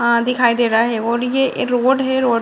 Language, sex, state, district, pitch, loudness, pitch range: Hindi, female, Bihar, Jamui, 240 Hz, -16 LUFS, 235-260 Hz